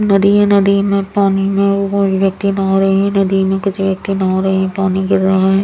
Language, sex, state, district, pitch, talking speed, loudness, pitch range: Hindi, female, Bihar, Patna, 195 Hz, 245 wpm, -14 LUFS, 190-200 Hz